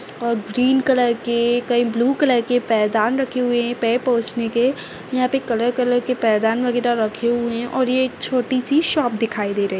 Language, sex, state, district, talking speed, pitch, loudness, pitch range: Kumaoni, female, Uttarakhand, Tehri Garhwal, 210 wpm, 240 Hz, -19 LUFS, 230-255 Hz